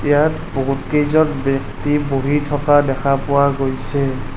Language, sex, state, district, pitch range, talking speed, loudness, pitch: Assamese, male, Assam, Kamrup Metropolitan, 135-145 Hz, 125 wpm, -17 LUFS, 140 Hz